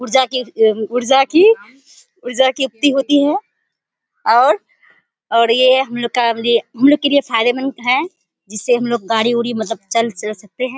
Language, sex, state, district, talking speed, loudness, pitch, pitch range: Hindi, female, Bihar, Kishanganj, 175 wpm, -15 LUFS, 250 Hz, 230-270 Hz